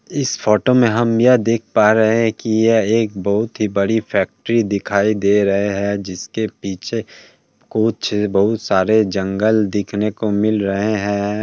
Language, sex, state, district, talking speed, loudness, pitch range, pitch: Hindi, male, Bihar, Kishanganj, 165 wpm, -17 LUFS, 100-115 Hz, 105 Hz